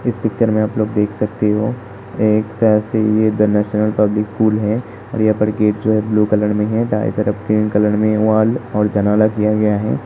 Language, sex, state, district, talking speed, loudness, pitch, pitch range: Hindi, male, Uttar Pradesh, Hamirpur, 220 wpm, -16 LUFS, 105 Hz, 105-110 Hz